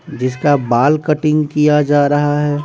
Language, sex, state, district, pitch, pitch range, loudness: Hindi, male, Bihar, West Champaran, 145 Hz, 145-150 Hz, -14 LUFS